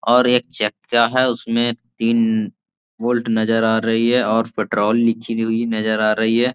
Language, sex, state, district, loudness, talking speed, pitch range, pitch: Hindi, male, Bihar, Jahanabad, -18 LUFS, 175 wpm, 110-120 Hz, 115 Hz